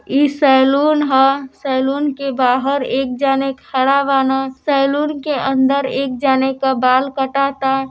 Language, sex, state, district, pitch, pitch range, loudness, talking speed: Hindi, female, Uttar Pradesh, Deoria, 270 Hz, 265-275 Hz, -16 LUFS, 135 wpm